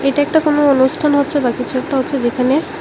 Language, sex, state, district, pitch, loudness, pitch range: Bengali, female, Tripura, West Tripura, 275 Hz, -15 LUFS, 260-290 Hz